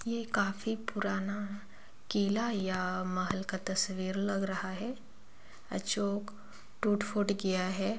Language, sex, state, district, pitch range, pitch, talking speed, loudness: Hindi, female, Bihar, Bhagalpur, 190-210 Hz, 200 Hz, 130 wpm, -34 LUFS